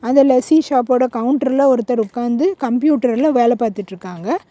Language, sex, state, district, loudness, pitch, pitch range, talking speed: Tamil, female, Tamil Nadu, Kanyakumari, -16 LUFS, 255 Hz, 240-275 Hz, 120 wpm